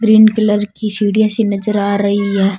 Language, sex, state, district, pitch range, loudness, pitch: Rajasthani, female, Rajasthan, Churu, 200-215 Hz, -14 LUFS, 210 Hz